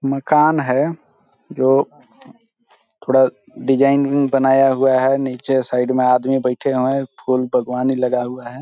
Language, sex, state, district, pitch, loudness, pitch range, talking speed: Hindi, male, Chhattisgarh, Balrampur, 135 Hz, -17 LUFS, 125-140 Hz, 140 wpm